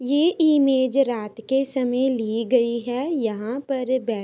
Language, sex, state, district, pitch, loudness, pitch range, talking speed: Hindi, female, Uttar Pradesh, Ghazipur, 255 Hz, -22 LUFS, 235-270 Hz, 155 wpm